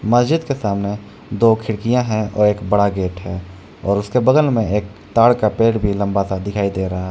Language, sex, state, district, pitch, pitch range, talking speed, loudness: Hindi, male, Jharkhand, Palamu, 105 Hz, 100-115 Hz, 220 wpm, -18 LUFS